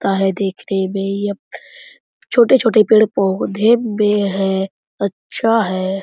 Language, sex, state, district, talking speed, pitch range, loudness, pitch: Hindi, male, Jharkhand, Sahebganj, 110 wpm, 195-225 Hz, -16 LUFS, 200 Hz